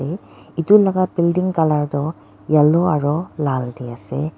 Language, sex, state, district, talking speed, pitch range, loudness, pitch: Nagamese, female, Nagaland, Dimapur, 150 wpm, 145-170 Hz, -18 LUFS, 150 Hz